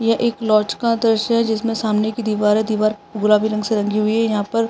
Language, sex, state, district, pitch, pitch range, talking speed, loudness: Hindi, male, Uttarakhand, Tehri Garhwal, 215 Hz, 210-225 Hz, 270 wpm, -18 LUFS